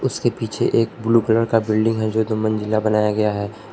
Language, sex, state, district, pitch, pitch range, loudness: Hindi, male, Jharkhand, Palamu, 110 Hz, 110-115 Hz, -19 LUFS